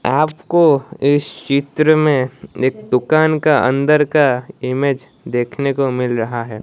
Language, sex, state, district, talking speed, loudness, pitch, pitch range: Hindi, female, Odisha, Malkangiri, 135 wpm, -16 LUFS, 140 Hz, 125-150 Hz